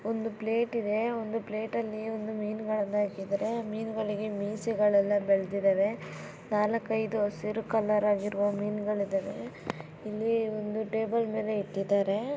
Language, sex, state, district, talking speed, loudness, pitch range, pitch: Kannada, female, Karnataka, Shimoga, 100 wpm, -30 LUFS, 205-220 Hz, 215 Hz